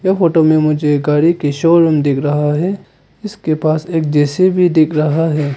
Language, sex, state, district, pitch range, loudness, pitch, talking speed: Hindi, male, Arunachal Pradesh, Papum Pare, 150-170 Hz, -13 LUFS, 155 Hz, 185 wpm